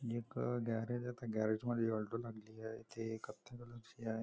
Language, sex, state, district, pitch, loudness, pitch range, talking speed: Marathi, male, Maharashtra, Nagpur, 115 Hz, -42 LUFS, 110-120 Hz, 200 wpm